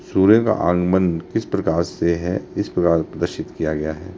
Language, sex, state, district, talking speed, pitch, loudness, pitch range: Hindi, male, Himachal Pradesh, Shimla, 170 wpm, 90 Hz, -20 LUFS, 85-95 Hz